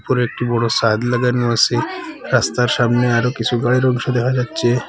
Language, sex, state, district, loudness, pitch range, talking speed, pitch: Bengali, male, Assam, Hailakandi, -17 LUFS, 120-125 Hz, 170 wpm, 125 Hz